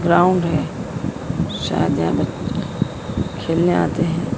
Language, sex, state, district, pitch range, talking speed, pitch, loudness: Hindi, female, Madhya Pradesh, Dhar, 165-175 Hz, 110 wpm, 170 Hz, -20 LUFS